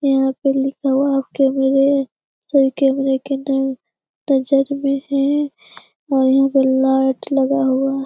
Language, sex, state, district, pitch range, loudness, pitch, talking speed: Hindi, female, Bihar, Jamui, 270-275 Hz, -17 LUFS, 270 Hz, 155 wpm